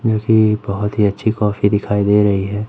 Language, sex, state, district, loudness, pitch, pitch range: Hindi, male, Madhya Pradesh, Umaria, -16 LUFS, 105 Hz, 100-110 Hz